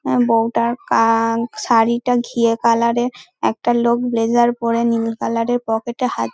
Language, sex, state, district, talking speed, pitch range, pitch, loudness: Bengali, female, West Bengal, Dakshin Dinajpur, 150 wpm, 230-240 Hz, 235 Hz, -17 LUFS